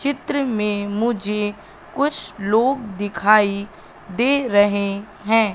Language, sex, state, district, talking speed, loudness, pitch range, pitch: Hindi, female, Madhya Pradesh, Katni, 95 wpm, -20 LUFS, 205-240 Hz, 210 Hz